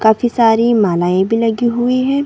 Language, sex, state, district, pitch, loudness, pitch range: Hindi, female, Chhattisgarh, Bilaspur, 230 Hz, -14 LUFS, 220-240 Hz